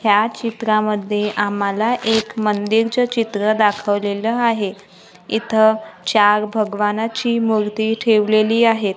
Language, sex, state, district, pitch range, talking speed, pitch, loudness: Marathi, female, Maharashtra, Gondia, 210-225 Hz, 100 wpm, 215 Hz, -18 LUFS